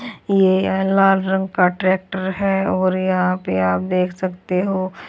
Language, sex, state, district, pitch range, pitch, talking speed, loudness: Hindi, female, Haryana, Charkhi Dadri, 185-195 Hz, 185 Hz, 155 wpm, -18 LUFS